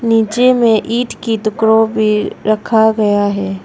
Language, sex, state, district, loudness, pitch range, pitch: Hindi, female, Arunachal Pradesh, Longding, -13 LUFS, 210-225 Hz, 220 Hz